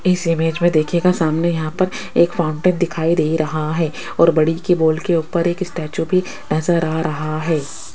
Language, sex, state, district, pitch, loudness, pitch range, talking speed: Hindi, female, Rajasthan, Jaipur, 165 Hz, -18 LUFS, 155-175 Hz, 195 wpm